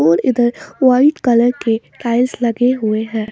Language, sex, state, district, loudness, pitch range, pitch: Hindi, female, Bihar, West Champaran, -15 LUFS, 225-250 Hz, 240 Hz